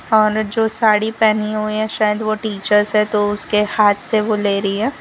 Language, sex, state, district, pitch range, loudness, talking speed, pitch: Hindi, female, Gujarat, Valsad, 210-215 Hz, -17 LUFS, 215 wpm, 215 Hz